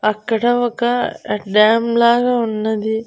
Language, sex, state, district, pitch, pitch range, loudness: Telugu, female, Andhra Pradesh, Annamaya, 230 Hz, 215-240 Hz, -16 LUFS